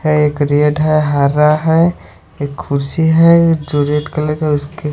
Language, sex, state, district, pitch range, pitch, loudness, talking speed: Hindi, male, Odisha, Sambalpur, 145-160 Hz, 150 Hz, -13 LUFS, 170 wpm